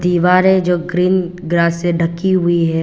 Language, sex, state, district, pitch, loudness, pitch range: Hindi, female, Arunachal Pradesh, Papum Pare, 175 Hz, -15 LUFS, 170-180 Hz